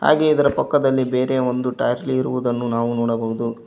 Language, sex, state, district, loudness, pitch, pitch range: Kannada, male, Karnataka, Koppal, -20 LUFS, 125 Hz, 115-130 Hz